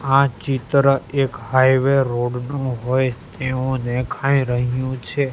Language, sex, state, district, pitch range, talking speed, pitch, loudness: Gujarati, male, Gujarat, Gandhinagar, 125-135 Hz, 125 wpm, 130 Hz, -20 LUFS